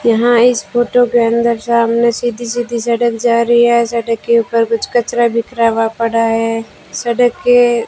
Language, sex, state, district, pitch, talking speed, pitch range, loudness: Hindi, female, Rajasthan, Bikaner, 235 Hz, 175 wpm, 230-240 Hz, -13 LUFS